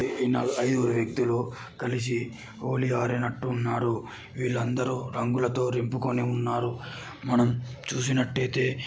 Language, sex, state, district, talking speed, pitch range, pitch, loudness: Telugu, male, Andhra Pradesh, Srikakulam, 100 wpm, 120-130 Hz, 125 Hz, -28 LUFS